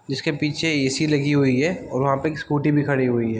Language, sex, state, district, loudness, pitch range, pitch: Hindi, male, Bihar, East Champaran, -21 LUFS, 135-150 Hz, 145 Hz